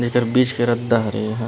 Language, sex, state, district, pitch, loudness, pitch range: Chhattisgarhi, male, Chhattisgarh, Rajnandgaon, 120 Hz, -19 LUFS, 115-120 Hz